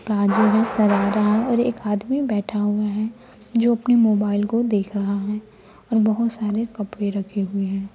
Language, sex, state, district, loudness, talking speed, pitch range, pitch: Hindi, female, Bihar, Kaimur, -21 LUFS, 175 wpm, 205-225 Hz, 210 Hz